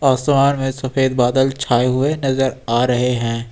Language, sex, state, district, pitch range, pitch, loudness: Hindi, male, Uttar Pradesh, Lucknow, 125-135 Hz, 130 Hz, -17 LUFS